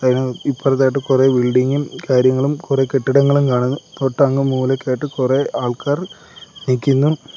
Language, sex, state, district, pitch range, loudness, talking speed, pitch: Malayalam, male, Kerala, Kollam, 130-140 Hz, -17 LUFS, 100 wpm, 135 Hz